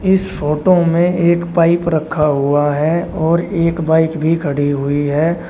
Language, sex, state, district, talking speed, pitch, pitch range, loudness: Hindi, male, Uttar Pradesh, Shamli, 165 wpm, 165 Hz, 150-170 Hz, -15 LUFS